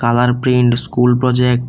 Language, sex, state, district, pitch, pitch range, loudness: Bengali, male, Tripura, West Tripura, 125 Hz, 120-125 Hz, -14 LUFS